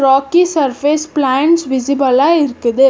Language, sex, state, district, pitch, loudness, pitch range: Tamil, female, Karnataka, Bangalore, 280 Hz, -13 LUFS, 265-310 Hz